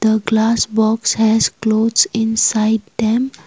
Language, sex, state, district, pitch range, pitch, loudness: English, female, Assam, Kamrup Metropolitan, 220-225 Hz, 220 Hz, -15 LUFS